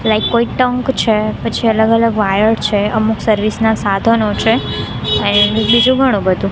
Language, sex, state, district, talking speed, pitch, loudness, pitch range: Gujarati, female, Gujarat, Gandhinagar, 165 wpm, 220 Hz, -13 LUFS, 210-230 Hz